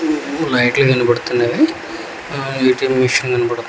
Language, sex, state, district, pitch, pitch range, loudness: Telugu, male, Telangana, Hyderabad, 130 Hz, 120-135 Hz, -16 LUFS